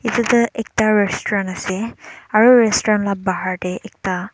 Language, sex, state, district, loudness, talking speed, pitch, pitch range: Nagamese, male, Nagaland, Dimapur, -17 LUFS, 125 wpm, 210 Hz, 185-225 Hz